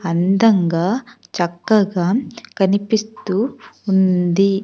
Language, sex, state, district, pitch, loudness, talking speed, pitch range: Telugu, female, Andhra Pradesh, Sri Satya Sai, 195 Hz, -18 LUFS, 50 wpm, 180-215 Hz